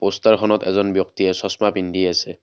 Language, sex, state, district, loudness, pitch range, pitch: Assamese, male, Assam, Kamrup Metropolitan, -18 LUFS, 95-105 Hz, 100 Hz